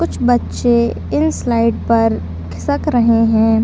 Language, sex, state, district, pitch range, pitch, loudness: Hindi, female, Uttar Pradesh, Deoria, 225-240 Hz, 230 Hz, -15 LUFS